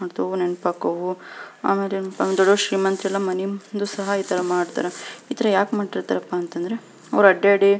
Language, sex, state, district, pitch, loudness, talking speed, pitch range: Kannada, female, Karnataka, Belgaum, 195 Hz, -22 LUFS, 125 wpm, 180-200 Hz